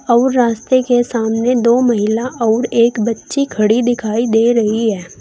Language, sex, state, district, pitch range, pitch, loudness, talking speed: Hindi, female, Uttar Pradesh, Saharanpur, 225-245 Hz, 235 Hz, -14 LUFS, 160 wpm